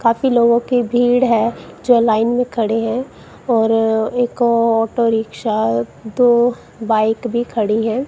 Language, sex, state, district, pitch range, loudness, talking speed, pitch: Hindi, female, Punjab, Kapurthala, 225-245 Hz, -16 LUFS, 140 wpm, 230 Hz